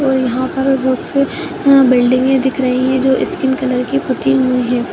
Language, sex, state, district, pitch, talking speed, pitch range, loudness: Kumaoni, female, Uttarakhand, Uttarkashi, 265 Hz, 205 wpm, 255-275 Hz, -14 LUFS